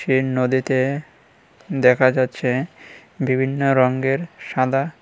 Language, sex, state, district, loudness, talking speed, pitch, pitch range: Bengali, male, Tripura, West Tripura, -20 LUFS, 85 wpm, 130 Hz, 130-140 Hz